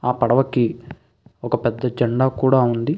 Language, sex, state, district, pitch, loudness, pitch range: Telugu, male, Andhra Pradesh, Krishna, 125 Hz, -19 LUFS, 120-130 Hz